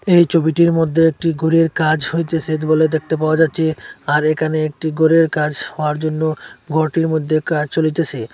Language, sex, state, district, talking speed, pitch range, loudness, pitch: Bengali, male, Assam, Hailakandi, 160 wpm, 155-165 Hz, -17 LUFS, 160 Hz